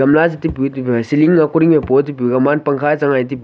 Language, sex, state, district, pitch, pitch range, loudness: Wancho, male, Arunachal Pradesh, Longding, 145 Hz, 135-155 Hz, -14 LUFS